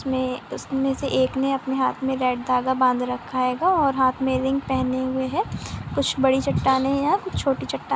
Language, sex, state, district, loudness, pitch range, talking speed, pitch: Hindi, female, Karnataka, Mysore, -23 LUFS, 255-270 Hz, 220 wpm, 265 Hz